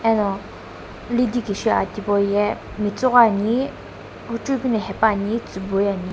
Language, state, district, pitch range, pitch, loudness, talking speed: Sumi, Nagaland, Dimapur, 200-235 Hz, 215 Hz, -21 LUFS, 115 wpm